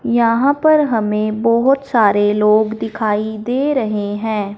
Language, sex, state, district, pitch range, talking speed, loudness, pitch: Hindi, male, Punjab, Fazilka, 210-245 Hz, 130 wpm, -15 LUFS, 220 Hz